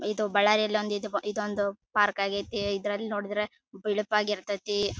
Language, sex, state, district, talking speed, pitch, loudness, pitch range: Kannada, female, Karnataka, Bellary, 145 wpm, 205 Hz, -28 LUFS, 205-210 Hz